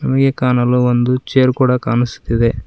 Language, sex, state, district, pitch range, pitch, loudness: Kannada, female, Karnataka, Koppal, 120-130 Hz, 125 Hz, -15 LUFS